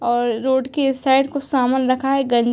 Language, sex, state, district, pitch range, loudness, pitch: Hindi, female, Bihar, Darbhanga, 245-270 Hz, -18 LUFS, 265 Hz